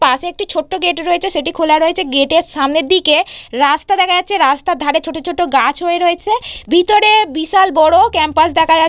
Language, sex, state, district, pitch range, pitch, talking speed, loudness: Bengali, female, West Bengal, Purulia, 315-370 Hz, 340 Hz, 180 wpm, -13 LUFS